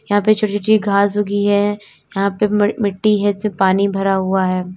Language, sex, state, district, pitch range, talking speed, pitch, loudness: Hindi, female, Uttar Pradesh, Lalitpur, 195-210 Hz, 200 wpm, 205 Hz, -16 LUFS